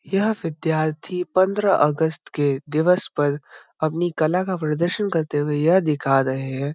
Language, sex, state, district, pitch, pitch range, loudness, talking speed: Hindi, male, Uttar Pradesh, Varanasi, 160 Hz, 145-180 Hz, -21 LUFS, 150 wpm